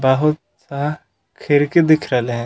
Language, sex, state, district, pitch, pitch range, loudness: Magahi, male, Bihar, Gaya, 145 Hz, 130-155 Hz, -17 LUFS